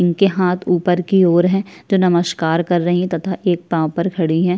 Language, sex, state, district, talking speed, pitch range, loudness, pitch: Hindi, female, Chhattisgarh, Kabirdham, 220 wpm, 170-185 Hz, -17 LUFS, 180 Hz